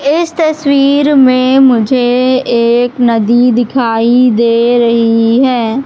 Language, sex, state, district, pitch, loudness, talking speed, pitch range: Hindi, female, Madhya Pradesh, Katni, 245 Hz, -9 LUFS, 100 wpm, 235-265 Hz